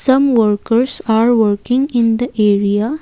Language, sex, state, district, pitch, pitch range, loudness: English, female, Assam, Kamrup Metropolitan, 230 Hz, 210-250 Hz, -14 LUFS